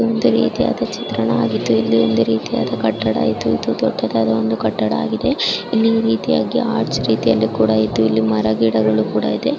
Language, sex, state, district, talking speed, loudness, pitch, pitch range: Kannada, male, Karnataka, Mysore, 135 wpm, -17 LUFS, 110 Hz, 110-115 Hz